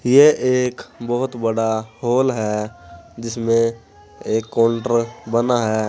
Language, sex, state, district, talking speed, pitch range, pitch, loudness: Hindi, male, Uttar Pradesh, Saharanpur, 110 wpm, 110-120 Hz, 115 Hz, -19 LUFS